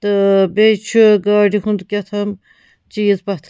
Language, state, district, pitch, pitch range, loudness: Kashmiri, Punjab, Kapurthala, 205 Hz, 200-210 Hz, -14 LUFS